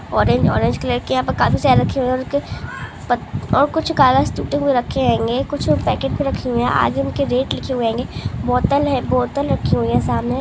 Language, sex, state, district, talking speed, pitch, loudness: Hindi, female, Rajasthan, Nagaur, 215 wpm, 255 Hz, -18 LUFS